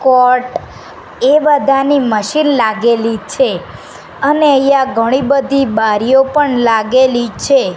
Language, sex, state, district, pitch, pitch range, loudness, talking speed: Gujarati, female, Gujarat, Gandhinagar, 265 Hz, 235-280 Hz, -12 LUFS, 110 wpm